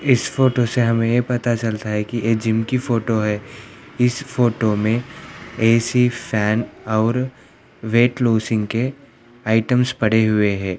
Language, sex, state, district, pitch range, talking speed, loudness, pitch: Hindi, male, Andhra Pradesh, Anantapur, 110-125 Hz, 80 wpm, -19 LUFS, 115 Hz